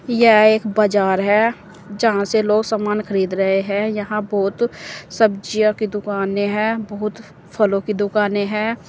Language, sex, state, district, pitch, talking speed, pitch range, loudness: Hindi, female, Uttar Pradesh, Saharanpur, 210 Hz, 150 wpm, 200-215 Hz, -18 LUFS